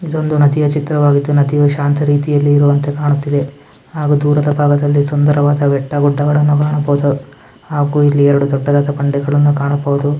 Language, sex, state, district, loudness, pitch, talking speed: Kannada, male, Karnataka, Mysore, -13 LUFS, 145 Hz, 125 wpm